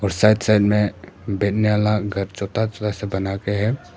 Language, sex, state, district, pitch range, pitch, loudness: Hindi, male, Arunachal Pradesh, Papum Pare, 100-105 Hz, 105 Hz, -20 LUFS